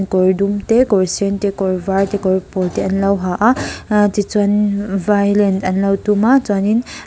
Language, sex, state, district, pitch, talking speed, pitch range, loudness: Mizo, female, Mizoram, Aizawl, 200 Hz, 230 wpm, 195-205 Hz, -16 LUFS